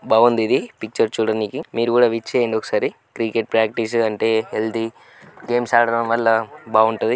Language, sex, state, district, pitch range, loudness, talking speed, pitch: Telugu, male, Telangana, Nalgonda, 110-115 Hz, -19 LUFS, 125 wpm, 115 Hz